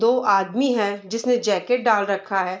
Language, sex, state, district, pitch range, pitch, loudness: Hindi, female, Bihar, Darbhanga, 195-245 Hz, 210 Hz, -21 LUFS